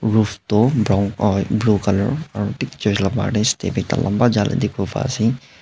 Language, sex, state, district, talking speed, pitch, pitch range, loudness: Nagamese, male, Nagaland, Dimapur, 190 wpm, 110 Hz, 100-120 Hz, -19 LUFS